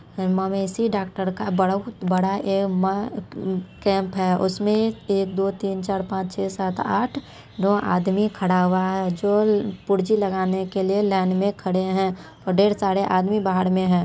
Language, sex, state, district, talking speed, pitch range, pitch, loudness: Maithili, female, Bihar, Supaul, 170 wpm, 185-200 Hz, 195 Hz, -22 LUFS